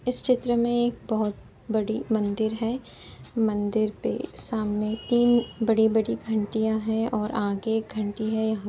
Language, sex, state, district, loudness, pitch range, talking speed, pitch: Hindi, female, Uttar Pradesh, Etah, -26 LUFS, 215-230 Hz, 150 wpm, 220 Hz